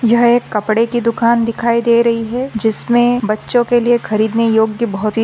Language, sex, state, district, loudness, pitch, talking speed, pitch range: Hindi, female, Maharashtra, Aurangabad, -14 LUFS, 235 Hz, 195 wpm, 220-240 Hz